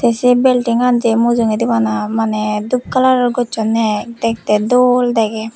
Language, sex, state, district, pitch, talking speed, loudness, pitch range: Chakma, female, Tripura, West Tripura, 230 Hz, 150 wpm, -14 LUFS, 220-245 Hz